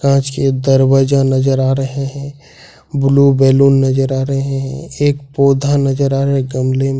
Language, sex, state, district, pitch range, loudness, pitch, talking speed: Hindi, male, Jharkhand, Ranchi, 135-140 Hz, -14 LUFS, 135 Hz, 180 wpm